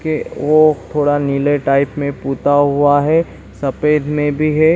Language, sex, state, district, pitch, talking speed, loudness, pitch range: Hindi, male, Chhattisgarh, Bilaspur, 145 Hz, 165 wpm, -15 LUFS, 140-155 Hz